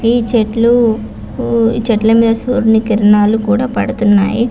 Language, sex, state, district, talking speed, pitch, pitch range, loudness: Telugu, female, Andhra Pradesh, Visakhapatnam, 135 wpm, 225 Hz, 220-235 Hz, -12 LUFS